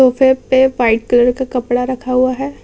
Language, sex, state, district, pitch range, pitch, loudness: Hindi, female, Jharkhand, Deoghar, 245-260 Hz, 255 Hz, -14 LUFS